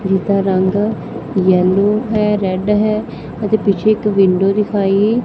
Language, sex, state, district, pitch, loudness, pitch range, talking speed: Punjabi, female, Punjab, Fazilka, 200 Hz, -15 LUFS, 190-210 Hz, 125 wpm